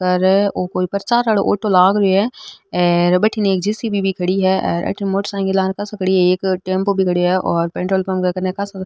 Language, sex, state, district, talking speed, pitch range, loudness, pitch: Marwari, female, Rajasthan, Nagaur, 140 wpm, 185-200 Hz, -17 LUFS, 190 Hz